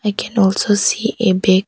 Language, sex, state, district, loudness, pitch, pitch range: English, female, Arunachal Pradesh, Longding, -16 LUFS, 200 Hz, 190-220 Hz